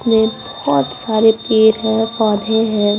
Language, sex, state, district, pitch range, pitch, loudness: Hindi, female, Bihar, Patna, 210-225 Hz, 220 Hz, -15 LUFS